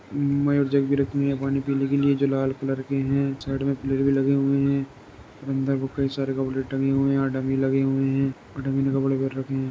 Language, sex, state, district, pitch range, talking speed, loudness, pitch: Hindi, male, Uttar Pradesh, Jyotiba Phule Nagar, 135-140 Hz, 255 wpm, -24 LUFS, 135 Hz